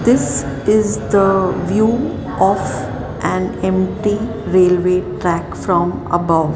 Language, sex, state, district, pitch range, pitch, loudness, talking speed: English, female, Maharashtra, Mumbai Suburban, 160-205 Hz, 185 Hz, -16 LUFS, 100 wpm